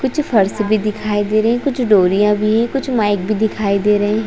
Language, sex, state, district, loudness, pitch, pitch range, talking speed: Hindi, female, Chhattisgarh, Raigarh, -16 LUFS, 215 Hz, 205-230 Hz, 250 wpm